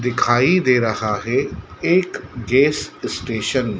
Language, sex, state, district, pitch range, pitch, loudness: Hindi, male, Madhya Pradesh, Dhar, 115-150 Hz, 125 Hz, -19 LUFS